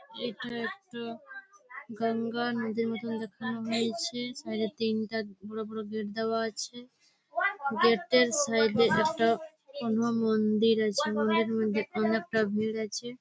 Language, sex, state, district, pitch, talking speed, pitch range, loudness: Bengali, female, West Bengal, Malda, 225 Hz, 140 wpm, 220-240 Hz, -30 LUFS